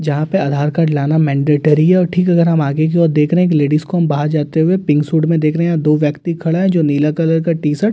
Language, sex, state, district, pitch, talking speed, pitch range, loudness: Hindi, male, Delhi, New Delhi, 160 Hz, 300 wpm, 150-170 Hz, -14 LUFS